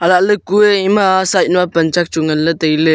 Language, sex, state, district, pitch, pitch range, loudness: Wancho, male, Arunachal Pradesh, Longding, 180 Hz, 160-195 Hz, -13 LUFS